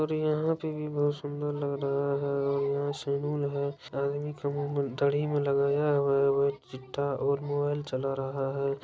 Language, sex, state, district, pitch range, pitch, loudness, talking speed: Maithili, male, Bihar, Darbhanga, 140-145 Hz, 140 Hz, -30 LUFS, 185 wpm